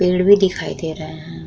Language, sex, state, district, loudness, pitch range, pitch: Hindi, female, Uttar Pradesh, Muzaffarnagar, -17 LUFS, 155-185 Hz, 165 Hz